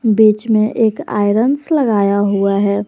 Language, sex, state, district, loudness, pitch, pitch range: Hindi, female, Jharkhand, Garhwa, -14 LUFS, 215 Hz, 205-225 Hz